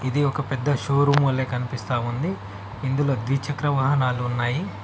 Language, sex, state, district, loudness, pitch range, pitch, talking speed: Telugu, male, Telangana, Mahabubabad, -23 LUFS, 120-140 Hz, 130 Hz, 135 wpm